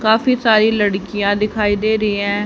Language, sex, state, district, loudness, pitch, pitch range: Hindi, female, Haryana, Jhajjar, -16 LUFS, 210 Hz, 205-220 Hz